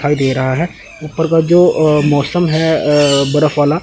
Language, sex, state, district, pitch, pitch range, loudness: Hindi, male, Chandigarh, Chandigarh, 150 Hz, 145-160 Hz, -13 LUFS